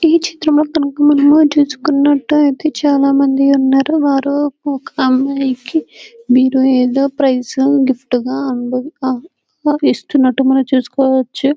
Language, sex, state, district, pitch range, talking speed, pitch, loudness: Telugu, female, Telangana, Karimnagar, 265-295 Hz, 105 wpm, 275 Hz, -13 LUFS